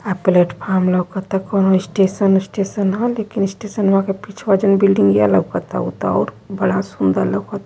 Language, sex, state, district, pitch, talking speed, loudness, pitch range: Hindi, female, Uttar Pradesh, Varanasi, 195 Hz, 165 wpm, -17 LUFS, 180-200 Hz